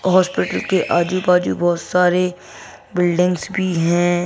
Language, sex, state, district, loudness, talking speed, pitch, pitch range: Hindi, female, Bihar, Gaya, -18 LUFS, 110 wpm, 180 Hz, 175-180 Hz